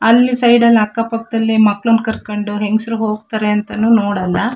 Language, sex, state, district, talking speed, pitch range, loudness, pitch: Kannada, female, Karnataka, Shimoga, 130 wpm, 210-230 Hz, -14 LUFS, 220 Hz